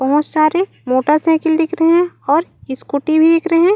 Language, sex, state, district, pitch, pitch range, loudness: Chhattisgarhi, female, Chhattisgarh, Raigarh, 320 Hz, 295-335 Hz, -15 LUFS